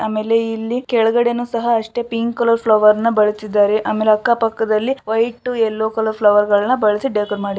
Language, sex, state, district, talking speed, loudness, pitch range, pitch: Kannada, female, Karnataka, Shimoga, 160 wpm, -17 LUFS, 215-235 Hz, 225 Hz